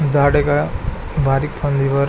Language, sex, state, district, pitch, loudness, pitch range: Marathi, male, Maharashtra, Pune, 145 Hz, -18 LUFS, 140-145 Hz